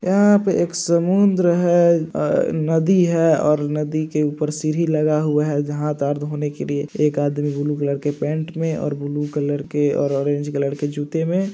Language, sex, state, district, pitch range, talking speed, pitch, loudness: Hindi, male, Jharkhand, Jamtara, 145-165 Hz, 190 wpm, 150 Hz, -20 LUFS